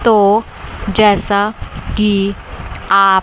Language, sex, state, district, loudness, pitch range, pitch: Hindi, female, Chandigarh, Chandigarh, -14 LUFS, 195-210 Hz, 205 Hz